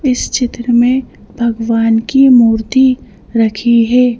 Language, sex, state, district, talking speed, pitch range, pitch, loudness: Hindi, female, Madhya Pradesh, Bhopal, 115 wpm, 230-255 Hz, 240 Hz, -12 LUFS